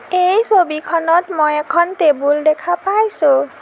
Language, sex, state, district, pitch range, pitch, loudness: Assamese, female, Assam, Sonitpur, 300-365 Hz, 335 Hz, -15 LUFS